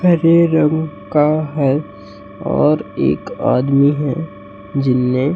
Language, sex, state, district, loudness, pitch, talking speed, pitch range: Hindi, male, Chhattisgarh, Raipur, -16 LUFS, 145 Hz, 100 wpm, 125-155 Hz